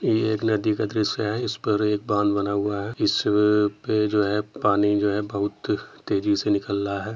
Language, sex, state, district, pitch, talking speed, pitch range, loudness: Hindi, male, Uttar Pradesh, Etah, 105 Hz, 210 wpm, 100-105 Hz, -23 LUFS